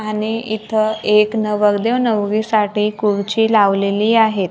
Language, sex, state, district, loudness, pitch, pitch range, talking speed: Marathi, female, Maharashtra, Gondia, -16 LUFS, 215 Hz, 210-220 Hz, 105 wpm